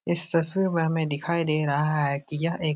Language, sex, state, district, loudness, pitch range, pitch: Hindi, male, Bihar, Jahanabad, -25 LUFS, 150-170 Hz, 160 Hz